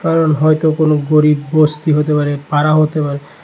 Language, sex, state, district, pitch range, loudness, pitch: Bengali, male, Tripura, West Tripura, 150-155 Hz, -13 LUFS, 150 Hz